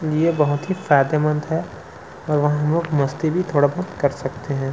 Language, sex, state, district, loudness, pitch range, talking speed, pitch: Hindi, male, Chhattisgarh, Sukma, -20 LUFS, 145-160 Hz, 190 wpm, 150 Hz